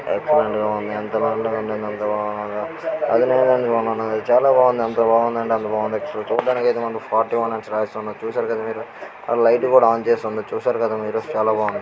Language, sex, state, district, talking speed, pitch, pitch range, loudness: Telugu, male, Karnataka, Belgaum, 130 wpm, 115 Hz, 110-120 Hz, -20 LUFS